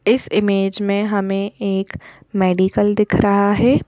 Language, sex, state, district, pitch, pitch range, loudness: Hindi, female, Madhya Pradesh, Bhopal, 200 Hz, 195-210 Hz, -17 LUFS